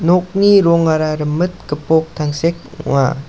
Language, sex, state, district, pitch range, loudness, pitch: Garo, male, Meghalaya, South Garo Hills, 150-175 Hz, -15 LUFS, 160 Hz